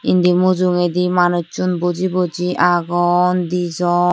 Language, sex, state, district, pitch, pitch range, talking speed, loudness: Chakma, female, Tripura, Unakoti, 180 Hz, 175-180 Hz, 100 wpm, -17 LUFS